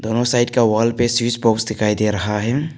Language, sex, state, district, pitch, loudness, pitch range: Hindi, male, Arunachal Pradesh, Papum Pare, 115 Hz, -18 LUFS, 110-120 Hz